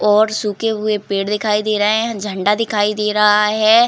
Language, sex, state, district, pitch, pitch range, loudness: Hindi, female, Uttar Pradesh, Varanasi, 210 Hz, 210-215 Hz, -16 LUFS